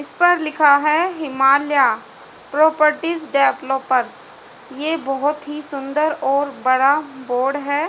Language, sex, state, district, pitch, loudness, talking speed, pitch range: Hindi, female, Haryana, Charkhi Dadri, 285 Hz, -18 LUFS, 115 wpm, 270-305 Hz